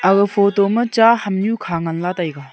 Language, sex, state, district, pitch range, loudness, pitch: Wancho, female, Arunachal Pradesh, Longding, 175-220 Hz, -17 LUFS, 200 Hz